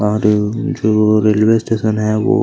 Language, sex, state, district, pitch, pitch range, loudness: Hindi, male, Chhattisgarh, Kabirdham, 110 Hz, 105-110 Hz, -14 LUFS